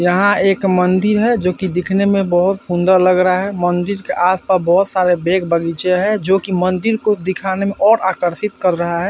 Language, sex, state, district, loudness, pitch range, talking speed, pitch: Hindi, male, Bihar, Vaishali, -15 LUFS, 180-200 Hz, 210 wpm, 185 Hz